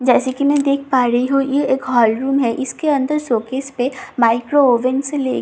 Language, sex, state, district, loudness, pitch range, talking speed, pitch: Hindi, female, Bihar, Katihar, -17 LUFS, 250-280 Hz, 235 wpm, 265 Hz